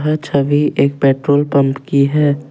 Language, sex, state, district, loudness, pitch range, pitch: Hindi, male, Assam, Kamrup Metropolitan, -14 LUFS, 140-145 Hz, 145 Hz